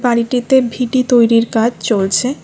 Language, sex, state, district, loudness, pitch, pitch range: Bengali, female, West Bengal, Alipurduar, -14 LUFS, 240 Hz, 230-255 Hz